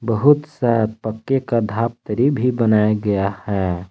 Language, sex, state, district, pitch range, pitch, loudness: Hindi, male, Jharkhand, Palamu, 105-125 Hz, 115 Hz, -19 LUFS